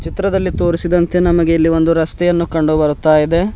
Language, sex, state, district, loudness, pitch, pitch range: Kannada, male, Karnataka, Bidar, -14 LUFS, 170 Hz, 160-175 Hz